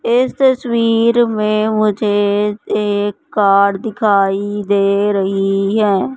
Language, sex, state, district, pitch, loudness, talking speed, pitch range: Hindi, male, Madhya Pradesh, Katni, 205 Hz, -15 LUFS, 95 wpm, 200-220 Hz